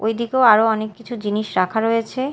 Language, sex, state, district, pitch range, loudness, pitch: Bengali, female, Odisha, Malkangiri, 215-235 Hz, -18 LUFS, 225 Hz